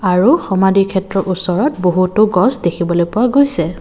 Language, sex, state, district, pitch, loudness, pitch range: Assamese, male, Assam, Kamrup Metropolitan, 190 Hz, -13 LUFS, 180-215 Hz